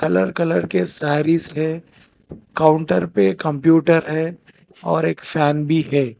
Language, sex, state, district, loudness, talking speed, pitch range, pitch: Hindi, male, Telangana, Hyderabad, -18 LUFS, 135 wpm, 140-165 Hz, 155 Hz